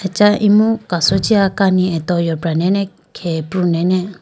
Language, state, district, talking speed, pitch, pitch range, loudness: Idu Mishmi, Arunachal Pradesh, Lower Dibang Valley, 155 wpm, 185 Hz, 175-200 Hz, -15 LUFS